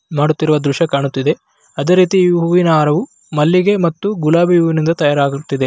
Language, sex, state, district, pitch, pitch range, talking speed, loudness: Kannada, male, Karnataka, Raichur, 160 Hz, 150-175 Hz, 135 wpm, -14 LUFS